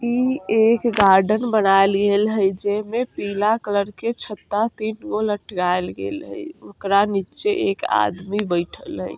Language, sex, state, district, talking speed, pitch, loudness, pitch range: Bajjika, female, Bihar, Vaishali, 145 wpm, 210 Hz, -20 LUFS, 195-230 Hz